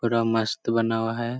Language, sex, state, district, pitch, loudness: Hindi, male, Jharkhand, Sahebganj, 115 Hz, -25 LUFS